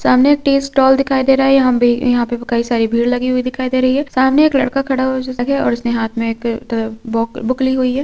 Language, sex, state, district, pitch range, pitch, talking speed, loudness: Hindi, female, Chhattisgarh, Korba, 235-270 Hz, 255 Hz, 245 wpm, -15 LUFS